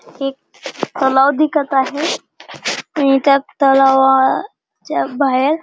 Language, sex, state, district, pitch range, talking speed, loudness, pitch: Marathi, female, Maharashtra, Dhule, 270-290 Hz, 95 wpm, -15 LUFS, 275 Hz